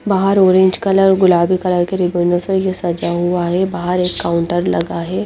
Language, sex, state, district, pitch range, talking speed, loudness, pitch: Hindi, female, Chandigarh, Chandigarh, 175-190 Hz, 150 wpm, -15 LUFS, 180 Hz